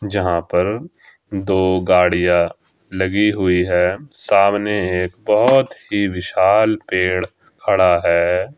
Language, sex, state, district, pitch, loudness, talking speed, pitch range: Hindi, male, Jharkhand, Ranchi, 95 Hz, -17 LUFS, 105 wpm, 90-105 Hz